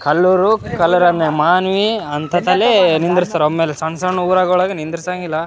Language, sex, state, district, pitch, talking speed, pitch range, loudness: Kannada, male, Karnataka, Raichur, 175 Hz, 130 wpm, 160-185 Hz, -15 LUFS